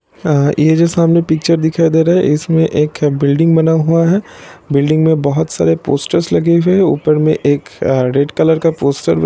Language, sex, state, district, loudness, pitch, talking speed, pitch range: Hindi, male, Bihar, Sitamarhi, -13 LUFS, 160 Hz, 205 wpm, 145-165 Hz